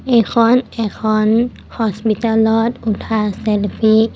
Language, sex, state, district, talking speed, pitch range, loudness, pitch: Assamese, female, Assam, Kamrup Metropolitan, 85 wpm, 215-230 Hz, -16 LUFS, 220 Hz